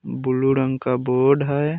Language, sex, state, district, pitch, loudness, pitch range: Hindi, male, Bihar, Vaishali, 130 Hz, -20 LUFS, 130-140 Hz